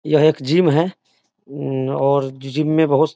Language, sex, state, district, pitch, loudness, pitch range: Hindi, male, Bihar, Sitamarhi, 150 Hz, -18 LUFS, 135-155 Hz